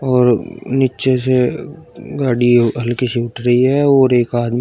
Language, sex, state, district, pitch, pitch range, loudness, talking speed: Hindi, male, Uttar Pradesh, Shamli, 125 Hz, 120-130 Hz, -15 LUFS, 155 wpm